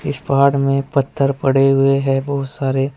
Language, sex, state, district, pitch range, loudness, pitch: Hindi, male, Uttar Pradesh, Saharanpur, 135-140 Hz, -16 LUFS, 135 Hz